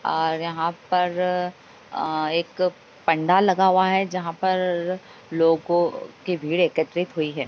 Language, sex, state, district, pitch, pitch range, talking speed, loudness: Hindi, female, Uttar Pradesh, Hamirpur, 175 Hz, 165-180 Hz, 130 wpm, -23 LUFS